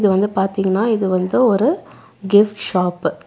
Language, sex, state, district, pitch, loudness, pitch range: Tamil, female, Tamil Nadu, Nilgiris, 195 Hz, -17 LUFS, 190-210 Hz